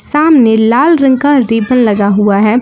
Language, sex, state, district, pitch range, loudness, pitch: Hindi, female, Jharkhand, Palamu, 220-285 Hz, -9 LUFS, 240 Hz